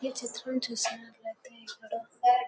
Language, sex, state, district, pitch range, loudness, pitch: Telugu, female, Telangana, Karimnagar, 240-345 Hz, -32 LUFS, 265 Hz